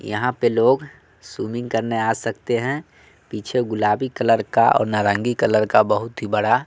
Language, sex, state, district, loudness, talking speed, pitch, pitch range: Hindi, male, Bihar, West Champaran, -20 LUFS, 170 wpm, 115 Hz, 110-125 Hz